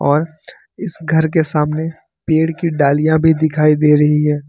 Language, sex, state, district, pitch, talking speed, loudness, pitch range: Hindi, male, Jharkhand, Ranchi, 155 Hz, 175 wpm, -15 LUFS, 150-160 Hz